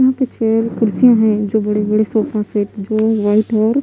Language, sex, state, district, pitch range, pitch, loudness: Hindi, female, Haryana, Jhajjar, 210-230 Hz, 220 Hz, -15 LUFS